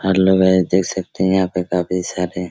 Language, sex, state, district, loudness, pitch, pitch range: Hindi, male, Bihar, Araria, -17 LUFS, 90 Hz, 90-95 Hz